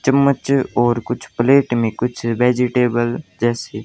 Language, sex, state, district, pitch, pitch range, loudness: Hindi, male, Haryana, Jhajjar, 120 Hz, 120-125 Hz, -18 LUFS